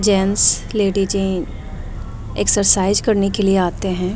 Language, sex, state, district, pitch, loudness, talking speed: Hindi, female, Delhi, New Delhi, 195 Hz, -16 LUFS, 130 wpm